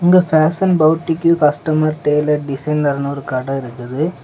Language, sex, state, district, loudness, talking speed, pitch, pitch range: Tamil, male, Tamil Nadu, Kanyakumari, -16 LUFS, 125 wpm, 150 Hz, 140-160 Hz